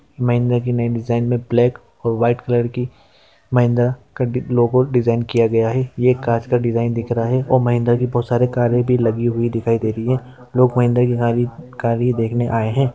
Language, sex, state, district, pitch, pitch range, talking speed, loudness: Hindi, male, Chhattisgarh, Raigarh, 120 Hz, 115-125 Hz, 215 wpm, -18 LUFS